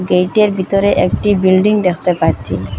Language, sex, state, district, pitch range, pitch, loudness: Bengali, female, Assam, Hailakandi, 165-200 Hz, 185 Hz, -13 LUFS